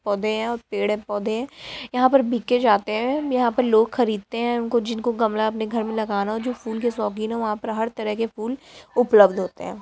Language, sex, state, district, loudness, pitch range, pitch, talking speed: Hindi, female, Bihar, Jamui, -22 LUFS, 215-240 Hz, 225 Hz, 245 wpm